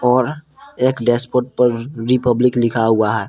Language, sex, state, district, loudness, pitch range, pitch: Hindi, male, Jharkhand, Palamu, -16 LUFS, 115-125 Hz, 125 Hz